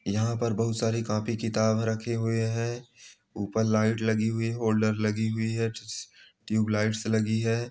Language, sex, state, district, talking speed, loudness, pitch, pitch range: Hindi, male, Bihar, Bhagalpur, 155 wpm, -28 LUFS, 110 Hz, 110-115 Hz